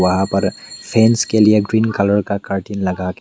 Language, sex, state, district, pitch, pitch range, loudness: Hindi, male, Meghalaya, West Garo Hills, 100 Hz, 95-105 Hz, -16 LUFS